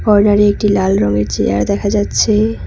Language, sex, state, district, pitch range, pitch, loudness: Bengali, female, West Bengal, Cooch Behar, 190-210 Hz, 205 Hz, -13 LUFS